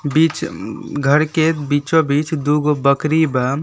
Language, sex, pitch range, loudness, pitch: Bhojpuri, male, 145-160 Hz, -17 LUFS, 150 Hz